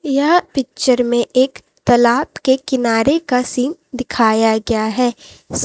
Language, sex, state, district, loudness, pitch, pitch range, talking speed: Hindi, female, Chhattisgarh, Raipur, -16 LUFS, 250 Hz, 235-275 Hz, 125 wpm